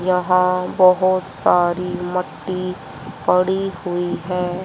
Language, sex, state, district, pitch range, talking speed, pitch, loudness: Hindi, male, Haryana, Rohtak, 180-185 Hz, 90 wpm, 180 Hz, -19 LUFS